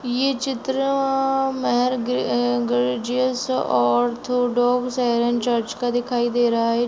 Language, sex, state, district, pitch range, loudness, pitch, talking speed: Hindi, female, Chhattisgarh, Raigarh, 235-255 Hz, -21 LUFS, 245 Hz, 130 wpm